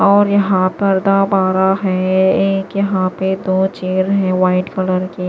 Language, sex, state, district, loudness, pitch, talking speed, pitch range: Hindi, female, Maharashtra, Washim, -15 LUFS, 190 Hz, 195 wpm, 185-195 Hz